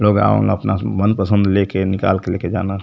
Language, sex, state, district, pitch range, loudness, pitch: Hindi, male, Uttar Pradesh, Varanasi, 95-105 Hz, -17 LUFS, 95 Hz